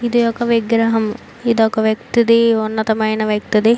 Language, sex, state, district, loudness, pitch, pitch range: Telugu, female, Andhra Pradesh, Srikakulam, -16 LUFS, 225 Hz, 220-235 Hz